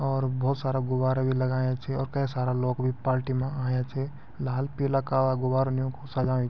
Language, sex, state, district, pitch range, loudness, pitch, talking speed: Garhwali, male, Uttarakhand, Tehri Garhwal, 130-135 Hz, -28 LUFS, 130 Hz, 210 wpm